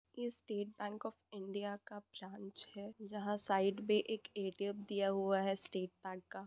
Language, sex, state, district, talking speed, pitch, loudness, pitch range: Hindi, female, Bihar, Jamui, 185 wpm, 200 Hz, -41 LUFS, 195-210 Hz